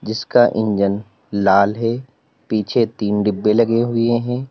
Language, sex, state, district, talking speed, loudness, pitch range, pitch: Hindi, male, Uttar Pradesh, Lalitpur, 135 wpm, -17 LUFS, 105-120 Hz, 110 Hz